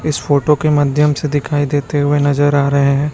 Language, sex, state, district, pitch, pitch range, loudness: Hindi, male, Chhattisgarh, Raipur, 145 Hz, 145-150 Hz, -14 LUFS